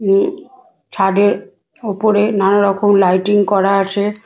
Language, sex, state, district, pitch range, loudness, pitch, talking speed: Bengali, female, West Bengal, Malda, 195-210 Hz, -14 LUFS, 205 Hz, 100 wpm